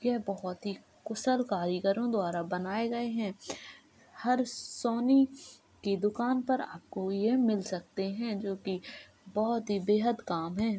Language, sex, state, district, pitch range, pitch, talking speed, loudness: Hindi, female, Uttar Pradesh, Jalaun, 195-240 Hz, 215 Hz, 140 wpm, -32 LUFS